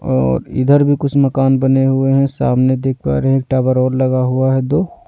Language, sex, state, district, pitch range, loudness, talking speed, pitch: Hindi, male, Delhi, New Delhi, 130-135 Hz, -14 LUFS, 235 wpm, 135 Hz